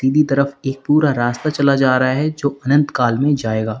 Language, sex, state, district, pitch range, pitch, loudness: Hindi, male, Uttar Pradesh, Lalitpur, 130-145 Hz, 140 Hz, -17 LUFS